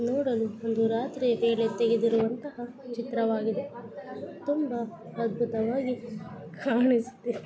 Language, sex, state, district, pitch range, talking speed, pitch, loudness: Kannada, female, Karnataka, Belgaum, 225-250 Hz, 80 wpm, 235 Hz, -28 LUFS